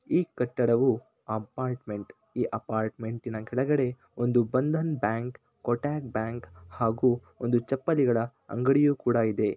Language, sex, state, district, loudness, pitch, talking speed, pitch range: Kannada, male, Karnataka, Shimoga, -28 LUFS, 120 Hz, 115 wpm, 110-130 Hz